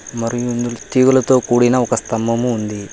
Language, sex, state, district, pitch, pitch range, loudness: Telugu, male, Telangana, Hyderabad, 120 Hz, 115-125 Hz, -16 LUFS